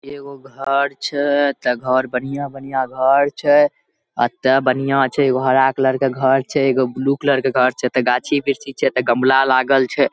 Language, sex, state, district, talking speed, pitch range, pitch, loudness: Maithili, male, Bihar, Saharsa, 190 wpm, 130-140 Hz, 135 Hz, -17 LUFS